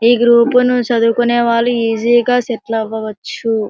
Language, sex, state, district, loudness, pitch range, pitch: Telugu, female, Andhra Pradesh, Srikakulam, -14 LUFS, 225-240 Hz, 235 Hz